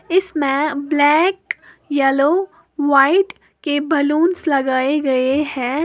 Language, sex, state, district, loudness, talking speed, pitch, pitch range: Hindi, female, Uttar Pradesh, Lalitpur, -17 LUFS, 105 wpm, 290 Hz, 275-335 Hz